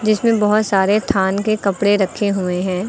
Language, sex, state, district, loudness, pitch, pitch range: Hindi, female, Uttar Pradesh, Lucknow, -17 LUFS, 205 Hz, 190-215 Hz